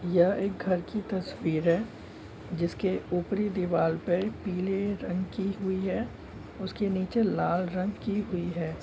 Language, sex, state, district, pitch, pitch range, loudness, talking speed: Hindi, male, Bihar, Darbhanga, 185 Hz, 175-195 Hz, -30 LUFS, 150 wpm